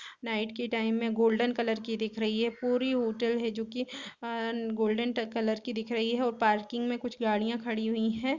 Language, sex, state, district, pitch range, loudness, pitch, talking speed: Hindi, female, Chhattisgarh, Kabirdham, 225-240 Hz, -31 LUFS, 230 Hz, 215 wpm